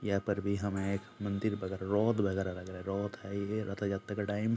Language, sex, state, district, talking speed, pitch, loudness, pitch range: Hindi, male, Jharkhand, Jamtara, 235 wpm, 100 Hz, -35 LUFS, 95-105 Hz